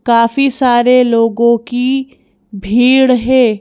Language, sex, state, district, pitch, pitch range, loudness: Hindi, female, Madhya Pradesh, Bhopal, 245 Hz, 230-255 Hz, -11 LUFS